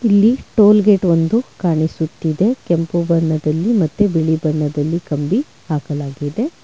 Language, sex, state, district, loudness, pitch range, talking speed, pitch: Kannada, female, Karnataka, Bangalore, -16 LUFS, 155-210 Hz, 110 wpm, 170 Hz